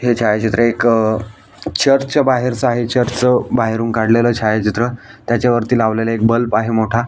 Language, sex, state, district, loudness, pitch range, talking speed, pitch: Marathi, male, Maharashtra, Aurangabad, -15 LUFS, 110-120 Hz, 145 wpm, 115 Hz